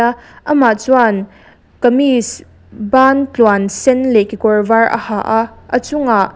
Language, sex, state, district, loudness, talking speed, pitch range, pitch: Mizo, female, Mizoram, Aizawl, -13 LUFS, 130 wpm, 215-260 Hz, 230 Hz